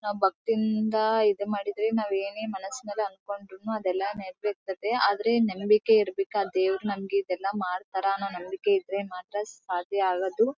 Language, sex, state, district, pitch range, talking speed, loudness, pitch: Kannada, female, Karnataka, Bellary, 195-215 Hz, 140 wpm, -28 LUFS, 200 Hz